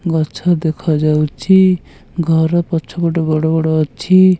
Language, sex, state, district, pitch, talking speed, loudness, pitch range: Odia, male, Odisha, Khordha, 160 Hz, 110 wpm, -15 LUFS, 155-175 Hz